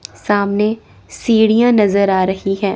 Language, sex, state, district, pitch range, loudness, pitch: Hindi, female, Chandigarh, Chandigarh, 195-220 Hz, -14 LUFS, 200 Hz